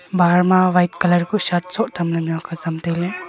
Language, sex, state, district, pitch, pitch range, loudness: Wancho, female, Arunachal Pradesh, Longding, 175 Hz, 170-180 Hz, -18 LUFS